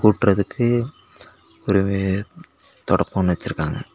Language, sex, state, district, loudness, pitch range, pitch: Tamil, male, Tamil Nadu, Nilgiris, -21 LUFS, 95-110 Hz, 100 Hz